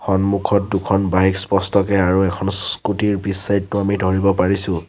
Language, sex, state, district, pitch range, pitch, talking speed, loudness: Assamese, male, Assam, Sonitpur, 95-100 Hz, 95 Hz, 170 wpm, -17 LUFS